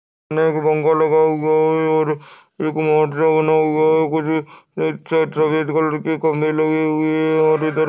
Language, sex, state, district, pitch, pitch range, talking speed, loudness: Hindi, male, Uttarakhand, Uttarkashi, 155 Hz, 155-160 Hz, 145 wpm, -17 LUFS